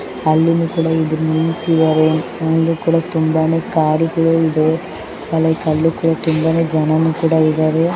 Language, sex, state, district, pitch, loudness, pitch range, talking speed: Kannada, female, Karnataka, Raichur, 160 Hz, -16 LUFS, 160-165 Hz, 120 wpm